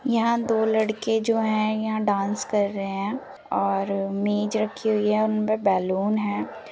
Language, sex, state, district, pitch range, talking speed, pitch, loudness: Hindi, female, Bihar, Saran, 200-220 Hz, 170 wpm, 215 Hz, -24 LUFS